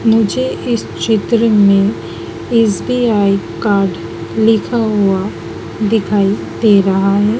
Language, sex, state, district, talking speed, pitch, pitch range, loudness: Hindi, female, Madhya Pradesh, Dhar, 95 wpm, 205 Hz, 195-225 Hz, -14 LUFS